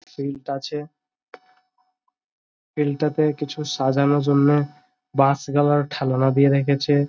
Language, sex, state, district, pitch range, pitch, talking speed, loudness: Bengali, male, West Bengal, Jhargram, 140-150 Hz, 145 Hz, 100 wpm, -21 LUFS